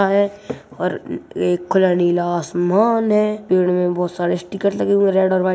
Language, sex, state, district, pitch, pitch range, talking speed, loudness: Hindi, female, Uttar Pradesh, Budaun, 185 Hz, 175-200 Hz, 205 wpm, -18 LUFS